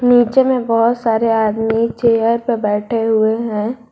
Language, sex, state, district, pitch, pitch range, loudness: Hindi, female, Jharkhand, Garhwa, 230 Hz, 225-235 Hz, -15 LUFS